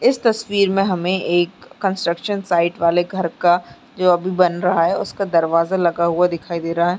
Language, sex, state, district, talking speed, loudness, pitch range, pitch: Hindi, female, Chhattisgarh, Sarguja, 195 wpm, -18 LUFS, 170-195 Hz, 180 Hz